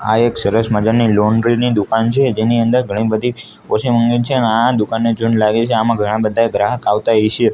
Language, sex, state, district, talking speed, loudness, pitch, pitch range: Gujarati, male, Gujarat, Gandhinagar, 200 wpm, -15 LUFS, 115 Hz, 110-120 Hz